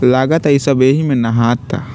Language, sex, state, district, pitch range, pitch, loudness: Bhojpuri, male, Bihar, Muzaffarpur, 125-145 Hz, 130 Hz, -13 LUFS